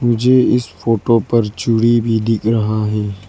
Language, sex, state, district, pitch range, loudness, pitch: Hindi, female, Arunachal Pradesh, Lower Dibang Valley, 105-115 Hz, -15 LUFS, 115 Hz